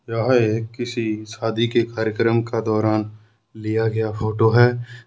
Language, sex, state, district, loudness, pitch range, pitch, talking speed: Hindi, male, Jharkhand, Ranchi, -20 LUFS, 110-120 Hz, 115 Hz, 140 wpm